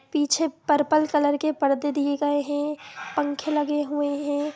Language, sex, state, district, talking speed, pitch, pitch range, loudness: Hindi, female, Bihar, Sitamarhi, 160 wpm, 290 Hz, 290-300 Hz, -24 LUFS